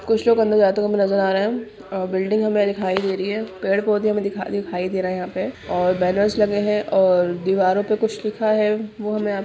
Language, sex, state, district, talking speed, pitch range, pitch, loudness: Hindi, female, Bihar, Jamui, 240 wpm, 190-215 Hz, 205 Hz, -20 LUFS